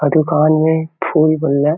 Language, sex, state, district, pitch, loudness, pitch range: Chhattisgarhi, male, Chhattisgarh, Kabirdham, 155 Hz, -14 LUFS, 150-160 Hz